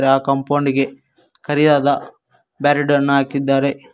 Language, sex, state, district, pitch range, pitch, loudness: Kannada, male, Karnataka, Koppal, 135-145 Hz, 140 Hz, -17 LUFS